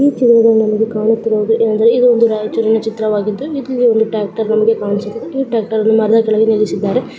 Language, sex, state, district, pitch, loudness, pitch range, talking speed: Kannada, male, Karnataka, Raichur, 220 Hz, -14 LUFS, 215-230 Hz, 115 wpm